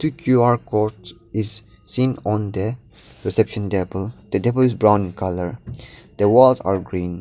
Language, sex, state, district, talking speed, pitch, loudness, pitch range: English, male, Nagaland, Dimapur, 160 wpm, 105 Hz, -20 LUFS, 95-120 Hz